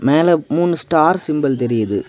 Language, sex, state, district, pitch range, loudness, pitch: Tamil, male, Tamil Nadu, Kanyakumari, 130-165 Hz, -16 LUFS, 155 Hz